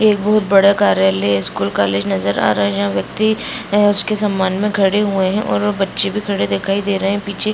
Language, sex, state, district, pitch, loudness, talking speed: Hindi, female, Bihar, Bhagalpur, 195 Hz, -16 LUFS, 255 wpm